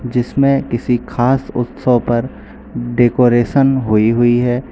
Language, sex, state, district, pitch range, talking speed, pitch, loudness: Hindi, male, Uttar Pradesh, Lucknow, 120-130 Hz, 115 wpm, 120 Hz, -14 LUFS